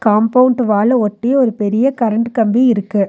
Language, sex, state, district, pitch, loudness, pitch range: Tamil, female, Tamil Nadu, Nilgiris, 230 Hz, -14 LUFS, 210-250 Hz